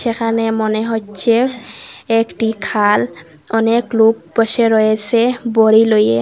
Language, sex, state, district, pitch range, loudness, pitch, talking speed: Bengali, female, Assam, Hailakandi, 215-230 Hz, -15 LUFS, 225 Hz, 105 wpm